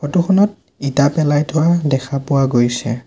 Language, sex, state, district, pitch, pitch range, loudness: Assamese, male, Assam, Sonitpur, 145 Hz, 135-160 Hz, -16 LUFS